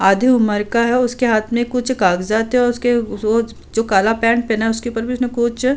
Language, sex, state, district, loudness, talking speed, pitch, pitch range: Hindi, female, Uttar Pradesh, Budaun, -17 LUFS, 240 wpm, 235 Hz, 220-245 Hz